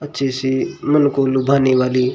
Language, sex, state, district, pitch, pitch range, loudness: Hindi, male, Rajasthan, Bikaner, 135 Hz, 130-140 Hz, -17 LUFS